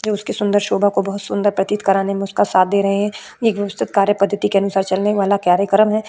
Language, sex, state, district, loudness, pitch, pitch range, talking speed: Hindi, female, Uttar Pradesh, Budaun, -17 LUFS, 200 Hz, 195-205 Hz, 245 wpm